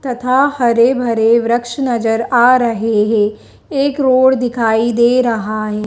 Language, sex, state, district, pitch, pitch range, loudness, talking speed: Hindi, female, Madhya Pradesh, Dhar, 235 Hz, 225-255 Hz, -14 LUFS, 145 wpm